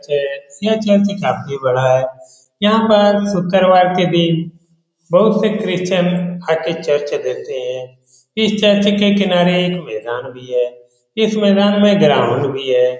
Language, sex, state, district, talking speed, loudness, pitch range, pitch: Hindi, male, Bihar, Saran, 160 wpm, -15 LUFS, 130-205 Hz, 175 Hz